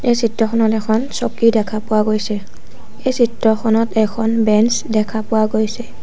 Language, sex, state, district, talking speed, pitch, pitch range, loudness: Assamese, female, Assam, Sonitpur, 140 wpm, 220 Hz, 215-230 Hz, -17 LUFS